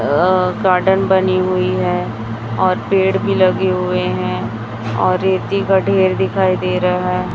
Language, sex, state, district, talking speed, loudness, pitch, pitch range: Hindi, female, Chhattisgarh, Raipur, 155 wpm, -16 LUFS, 185 Hz, 120-190 Hz